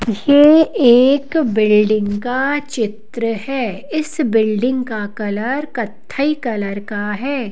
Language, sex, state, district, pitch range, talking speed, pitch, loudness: Hindi, female, Madhya Pradesh, Bhopal, 215-280 Hz, 110 wpm, 235 Hz, -16 LUFS